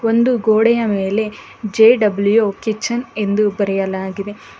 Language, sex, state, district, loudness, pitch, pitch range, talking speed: Kannada, female, Karnataka, Bangalore, -16 LUFS, 215 Hz, 200-225 Hz, 105 wpm